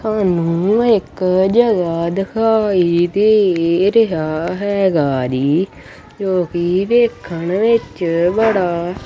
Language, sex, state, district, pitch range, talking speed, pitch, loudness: Punjabi, male, Punjab, Kapurthala, 170-215 Hz, 85 wpm, 185 Hz, -16 LUFS